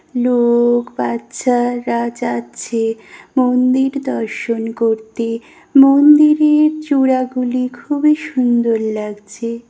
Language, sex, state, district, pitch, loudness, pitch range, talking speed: Bengali, female, West Bengal, Kolkata, 240 Hz, -15 LUFS, 230-270 Hz, 75 wpm